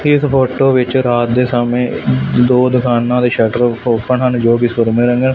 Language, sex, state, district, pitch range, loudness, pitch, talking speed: Punjabi, male, Punjab, Fazilka, 120-125 Hz, -13 LUFS, 125 Hz, 170 wpm